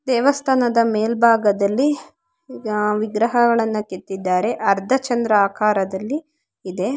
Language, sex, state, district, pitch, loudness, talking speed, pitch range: Kannada, female, Karnataka, Chamarajanagar, 225 Hz, -19 LUFS, 75 wpm, 205-260 Hz